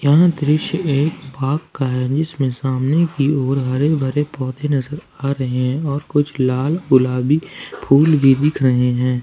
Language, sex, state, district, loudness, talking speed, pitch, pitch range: Hindi, male, Jharkhand, Ranchi, -18 LUFS, 170 wpm, 140 Hz, 130-150 Hz